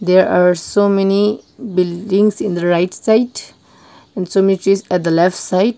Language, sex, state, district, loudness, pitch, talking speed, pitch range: English, female, Nagaland, Dimapur, -15 LUFS, 195 Hz, 165 wpm, 180-205 Hz